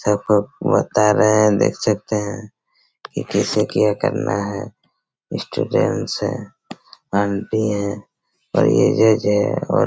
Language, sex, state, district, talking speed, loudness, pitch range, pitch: Hindi, male, Chhattisgarh, Raigarh, 135 wpm, -19 LUFS, 100-105 Hz, 105 Hz